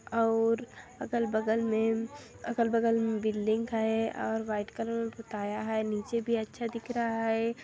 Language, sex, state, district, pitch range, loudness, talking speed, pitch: Hindi, female, Chhattisgarh, Kabirdham, 220-230 Hz, -31 LUFS, 155 wpm, 225 Hz